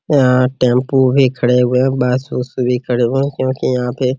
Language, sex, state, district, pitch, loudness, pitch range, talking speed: Hindi, male, Bihar, Araria, 125 Hz, -15 LUFS, 125-130 Hz, 230 wpm